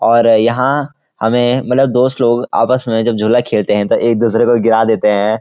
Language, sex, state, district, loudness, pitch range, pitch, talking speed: Hindi, male, Uttarakhand, Uttarkashi, -13 LUFS, 110-125 Hz, 120 Hz, 210 wpm